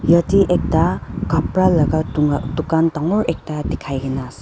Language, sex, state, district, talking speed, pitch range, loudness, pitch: Nagamese, female, Nagaland, Dimapur, 120 wpm, 145-170 Hz, -18 LUFS, 155 Hz